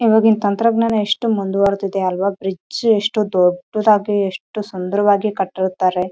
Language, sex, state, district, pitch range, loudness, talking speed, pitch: Kannada, female, Karnataka, Raichur, 190-215 Hz, -17 LUFS, 120 wpm, 200 Hz